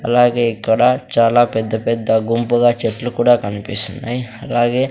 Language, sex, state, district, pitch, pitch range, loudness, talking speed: Telugu, male, Andhra Pradesh, Sri Satya Sai, 120 Hz, 110-120 Hz, -16 LUFS, 120 wpm